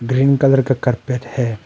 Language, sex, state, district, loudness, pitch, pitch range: Hindi, male, Arunachal Pradesh, Papum Pare, -16 LUFS, 125 Hz, 120-135 Hz